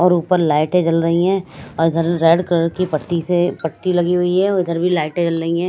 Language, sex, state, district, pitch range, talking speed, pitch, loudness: Hindi, female, Punjab, Kapurthala, 165-180 Hz, 255 wpm, 170 Hz, -17 LUFS